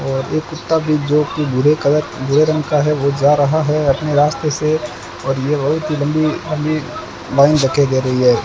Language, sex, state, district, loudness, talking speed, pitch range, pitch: Hindi, male, Rajasthan, Bikaner, -16 LUFS, 205 wpm, 135-155 Hz, 150 Hz